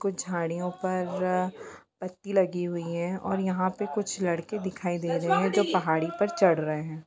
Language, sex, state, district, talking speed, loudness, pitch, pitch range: Hindi, female, Bihar, Sitamarhi, 180 wpm, -28 LUFS, 185 Hz, 170-195 Hz